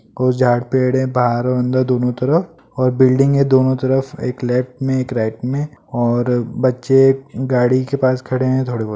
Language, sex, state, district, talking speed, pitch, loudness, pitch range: Hindi, male, West Bengal, Purulia, 185 wpm, 130 Hz, -17 LUFS, 125-130 Hz